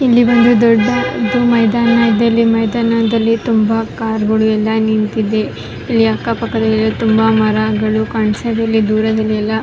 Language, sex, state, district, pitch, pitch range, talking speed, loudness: Kannada, female, Karnataka, Raichur, 225 Hz, 220-230 Hz, 130 wpm, -13 LUFS